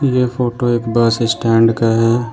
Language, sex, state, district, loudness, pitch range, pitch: Hindi, male, Jharkhand, Ranchi, -15 LUFS, 115-120 Hz, 115 Hz